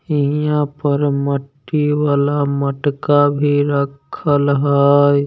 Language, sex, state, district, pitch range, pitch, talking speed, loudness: Maithili, male, Bihar, Samastipur, 140-145 Hz, 145 Hz, 100 wpm, -16 LUFS